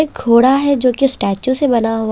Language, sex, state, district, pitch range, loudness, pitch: Hindi, female, Delhi, New Delhi, 230-275 Hz, -13 LUFS, 255 Hz